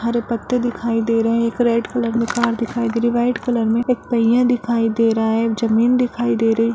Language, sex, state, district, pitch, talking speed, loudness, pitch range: Hindi, female, Bihar, Jahanabad, 235 Hz, 260 wpm, -18 LUFS, 230-240 Hz